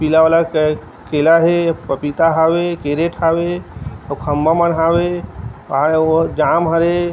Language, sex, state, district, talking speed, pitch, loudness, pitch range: Chhattisgarhi, male, Chhattisgarh, Rajnandgaon, 120 wpm, 160 Hz, -15 LUFS, 145-170 Hz